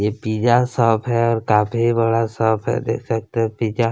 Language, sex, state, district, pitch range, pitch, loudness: Hindi, male, Chhattisgarh, Kabirdham, 110-115 Hz, 115 Hz, -19 LUFS